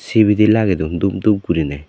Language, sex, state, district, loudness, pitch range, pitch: Chakma, male, Tripura, Dhalai, -16 LUFS, 90-105 Hz, 100 Hz